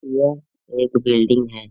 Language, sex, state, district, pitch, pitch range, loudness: Hindi, male, Bihar, Jahanabad, 125 Hz, 120-135 Hz, -19 LUFS